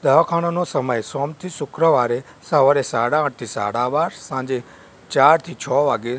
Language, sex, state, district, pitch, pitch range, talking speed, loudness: Gujarati, male, Gujarat, Gandhinagar, 140 Hz, 125-160 Hz, 155 wpm, -20 LUFS